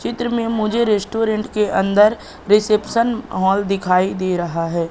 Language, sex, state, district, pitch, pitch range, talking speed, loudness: Hindi, male, Madhya Pradesh, Katni, 210 Hz, 190-225 Hz, 145 wpm, -18 LUFS